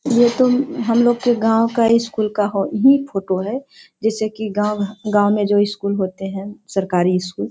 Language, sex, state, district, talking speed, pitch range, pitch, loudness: Hindi, female, Bihar, Sitamarhi, 190 wpm, 200-235 Hz, 210 Hz, -18 LUFS